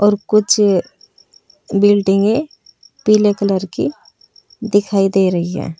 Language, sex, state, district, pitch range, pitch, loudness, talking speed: Hindi, female, Uttar Pradesh, Saharanpur, 195-215 Hz, 205 Hz, -15 LUFS, 95 wpm